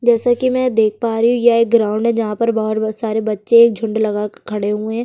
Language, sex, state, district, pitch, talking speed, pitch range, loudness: Hindi, female, Chhattisgarh, Sukma, 225 Hz, 275 wpm, 215-235 Hz, -16 LUFS